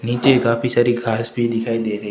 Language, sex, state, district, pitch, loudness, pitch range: Hindi, male, Gujarat, Gandhinagar, 115 Hz, -18 LUFS, 115-120 Hz